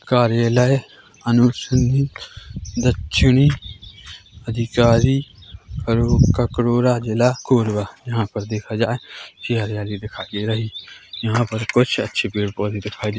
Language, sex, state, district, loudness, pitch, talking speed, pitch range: Hindi, male, Chhattisgarh, Korba, -19 LUFS, 115 Hz, 115 wpm, 105-125 Hz